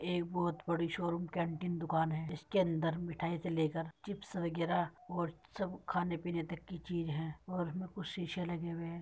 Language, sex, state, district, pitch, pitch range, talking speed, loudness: Hindi, male, Uttar Pradesh, Muzaffarnagar, 170 Hz, 165-180 Hz, 185 wpm, -38 LUFS